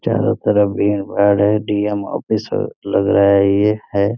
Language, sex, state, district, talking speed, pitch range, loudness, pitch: Hindi, male, Uttar Pradesh, Deoria, 170 wpm, 100-105 Hz, -16 LUFS, 100 Hz